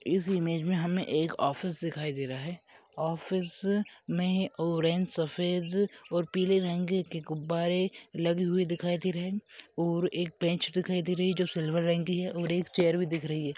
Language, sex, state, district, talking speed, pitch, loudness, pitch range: Hindi, male, Chhattisgarh, Raigarh, 195 wpm, 175 Hz, -30 LUFS, 165-185 Hz